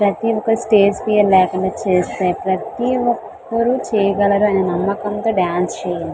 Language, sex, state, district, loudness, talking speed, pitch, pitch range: Telugu, female, Andhra Pradesh, Visakhapatnam, -17 LUFS, 100 wpm, 200 Hz, 185-225 Hz